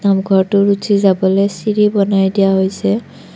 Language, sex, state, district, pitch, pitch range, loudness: Assamese, female, Assam, Kamrup Metropolitan, 195 Hz, 190-200 Hz, -14 LUFS